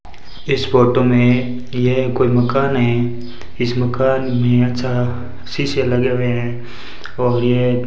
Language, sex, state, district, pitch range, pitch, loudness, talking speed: Hindi, male, Rajasthan, Bikaner, 120-125 Hz, 125 Hz, -17 LUFS, 135 wpm